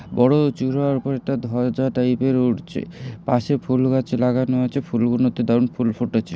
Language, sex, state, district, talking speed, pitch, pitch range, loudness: Bengali, male, West Bengal, North 24 Parganas, 160 wpm, 125 Hz, 120-130 Hz, -20 LUFS